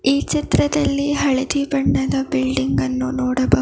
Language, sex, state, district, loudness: Kannada, female, Karnataka, Bangalore, -19 LUFS